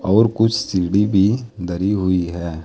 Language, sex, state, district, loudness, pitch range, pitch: Hindi, male, Uttar Pradesh, Saharanpur, -18 LUFS, 90-110 Hz, 95 Hz